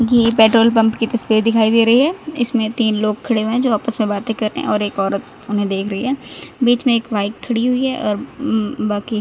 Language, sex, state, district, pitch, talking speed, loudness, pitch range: Hindi, female, Haryana, Rohtak, 225 Hz, 245 wpm, -17 LUFS, 215-240 Hz